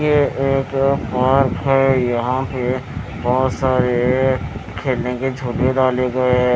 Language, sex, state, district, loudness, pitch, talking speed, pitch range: Hindi, male, Chandigarh, Chandigarh, -18 LUFS, 130 Hz, 120 wpm, 125-135 Hz